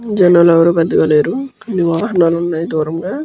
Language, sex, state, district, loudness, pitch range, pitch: Telugu, male, Andhra Pradesh, Guntur, -13 LUFS, 165-200 Hz, 170 Hz